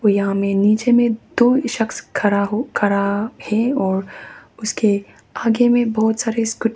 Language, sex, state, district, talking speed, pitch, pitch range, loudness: Hindi, female, Arunachal Pradesh, Papum Pare, 170 wpm, 220 Hz, 205-240 Hz, -18 LUFS